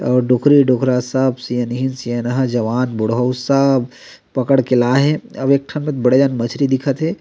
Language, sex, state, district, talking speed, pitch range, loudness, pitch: Chhattisgarhi, male, Chhattisgarh, Rajnandgaon, 165 wpm, 125-140 Hz, -16 LUFS, 130 Hz